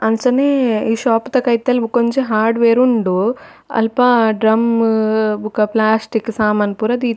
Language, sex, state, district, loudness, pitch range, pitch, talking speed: Tulu, female, Karnataka, Dakshina Kannada, -15 LUFS, 220-240 Hz, 225 Hz, 125 wpm